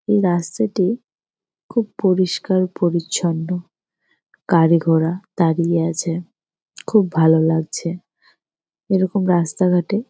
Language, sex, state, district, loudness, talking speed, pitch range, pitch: Bengali, female, West Bengal, Jalpaiguri, -19 LUFS, 90 wpm, 170-195 Hz, 180 Hz